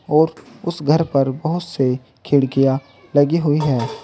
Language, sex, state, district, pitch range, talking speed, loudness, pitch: Hindi, male, Uttar Pradesh, Saharanpur, 135-160 Hz, 150 wpm, -19 LUFS, 145 Hz